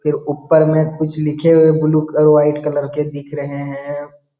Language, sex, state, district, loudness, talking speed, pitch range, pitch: Hindi, male, Bihar, Jamui, -15 LUFS, 220 wpm, 145-155 Hz, 150 Hz